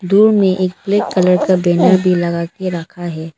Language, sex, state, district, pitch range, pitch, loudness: Hindi, female, Arunachal Pradesh, Lower Dibang Valley, 175-190 Hz, 185 Hz, -14 LUFS